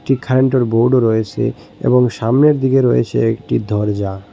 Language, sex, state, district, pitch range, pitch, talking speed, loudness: Bengali, male, Assam, Hailakandi, 105-130 Hz, 120 Hz, 125 wpm, -15 LUFS